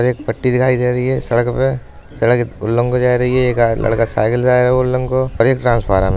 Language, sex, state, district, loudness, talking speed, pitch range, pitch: Bundeli, male, Uttar Pradesh, Budaun, -15 LUFS, 255 wpm, 115-125 Hz, 125 Hz